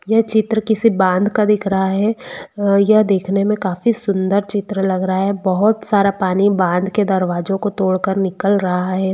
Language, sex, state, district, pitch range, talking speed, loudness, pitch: Hindi, female, Jharkhand, Jamtara, 190-210 Hz, 195 wpm, -16 LUFS, 200 Hz